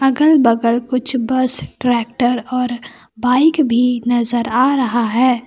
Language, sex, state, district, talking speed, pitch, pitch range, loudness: Hindi, female, Jharkhand, Palamu, 130 wpm, 250 Hz, 240-255 Hz, -15 LUFS